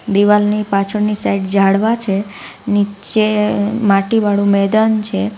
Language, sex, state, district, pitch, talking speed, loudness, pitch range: Gujarati, female, Gujarat, Valsad, 205 Hz, 125 wpm, -14 LUFS, 200-215 Hz